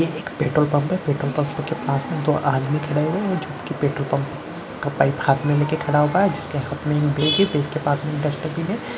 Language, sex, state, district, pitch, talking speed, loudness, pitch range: Hindi, male, Chhattisgarh, Rajnandgaon, 150 Hz, 260 wpm, -22 LUFS, 145-155 Hz